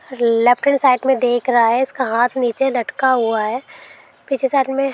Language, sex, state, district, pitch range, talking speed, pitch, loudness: Hindi, female, Chhattisgarh, Balrampur, 240-270 Hz, 205 wpm, 255 Hz, -17 LUFS